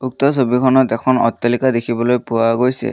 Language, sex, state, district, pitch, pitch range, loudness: Assamese, male, Assam, Kamrup Metropolitan, 125 Hz, 115-130 Hz, -15 LUFS